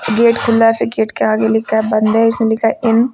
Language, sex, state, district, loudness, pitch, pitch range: Hindi, female, Uttar Pradesh, Lucknow, -14 LUFS, 225 Hz, 220-230 Hz